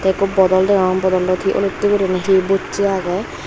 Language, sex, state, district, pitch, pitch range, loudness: Chakma, female, Tripura, Unakoti, 190 Hz, 185-195 Hz, -16 LUFS